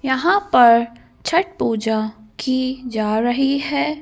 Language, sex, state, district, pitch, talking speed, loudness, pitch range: Hindi, female, Madhya Pradesh, Bhopal, 255 Hz, 135 wpm, -18 LUFS, 225-285 Hz